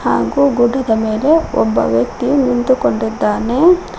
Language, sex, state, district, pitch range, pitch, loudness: Kannada, female, Karnataka, Koppal, 215-280 Hz, 245 Hz, -14 LUFS